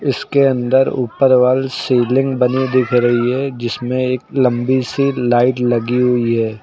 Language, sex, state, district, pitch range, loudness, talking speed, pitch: Hindi, male, Uttar Pradesh, Lucknow, 120-130 Hz, -15 LUFS, 155 wpm, 125 Hz